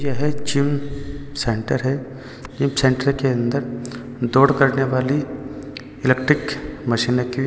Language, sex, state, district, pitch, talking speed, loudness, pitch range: Hindi, male, Uttar Pradesh, Saharanpur, 135 Hz, 120 wpm, -20 LUFS, 130-140 Hz